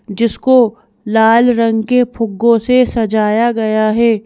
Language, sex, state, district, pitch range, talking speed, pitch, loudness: Hindi, female, Madhya Pradesh, Bhopal, 220-235 Hz, 125 wpm, 230 Hz, -13 LUFS